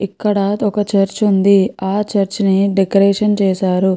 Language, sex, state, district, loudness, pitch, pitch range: Telugu, female, Andhra Pradesh, Chittoor, -15 LUFS, 200 Hz, 195-205 Hz